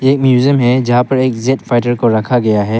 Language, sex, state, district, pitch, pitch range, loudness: Hindi, male, Arunachal Pradesh, Papum Pare, 125 Hz, 120-130 Hz, -12 LUFS